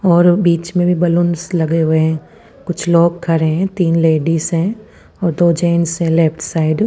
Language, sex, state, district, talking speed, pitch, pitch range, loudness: Hindi, female, Punjab, Fazilka, 200 wpm, 170 Hz, 165-175 Hz, -15 LUFS